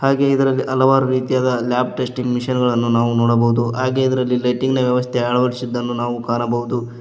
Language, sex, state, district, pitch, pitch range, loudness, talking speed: Kannada, male, Karnataka, Koppal, 125 Hz, 120-130 Hz, -18 LUFS, 155 wpm